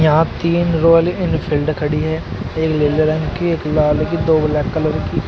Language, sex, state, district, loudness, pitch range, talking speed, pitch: Hindi, male, Uttar Pradesh, Shamli, -16 LUFS, 150-165 Hz, 180 wpm, 155 Hz